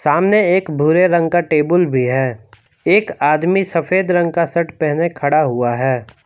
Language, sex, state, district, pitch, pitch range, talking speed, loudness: Hindi, male, Jharkhand, Palamu, 160 Hz, 135-175 Hz, 175 wpm, -15 LUFS